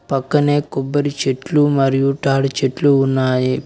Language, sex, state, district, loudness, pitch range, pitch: Telugu, male, Telangana, Mahabubabad, -17 LUFS, 135-145 Hz, 135 Hz